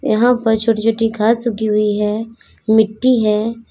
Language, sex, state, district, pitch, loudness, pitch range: Hindi, female, Uttar Pradesh, Lalitpur, 225 Hz, -16 LUFS, 215-230 Hz